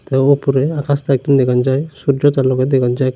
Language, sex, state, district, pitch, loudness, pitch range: Bengali, male, Tripura, Unakoti, 135 Hz, -15 LUFS, 130-140 Hz